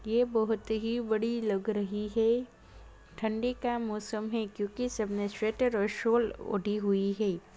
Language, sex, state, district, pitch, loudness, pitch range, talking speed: Hindi, female, Chhattisgarh, Raigarh, 220 Hz, -31 LUFS, 205-230 Hz, 150 wpm